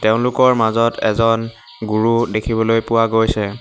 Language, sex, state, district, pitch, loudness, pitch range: Assamese, male, Assam, Hailakandi, 115 Hz, -16 LUFS, 110-115 Hz